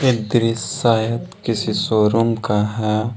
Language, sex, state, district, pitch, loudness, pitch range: Hindi, male, Jharkhand, Deoghar, 115 Hz, -19 LUFS, 110-115 Hz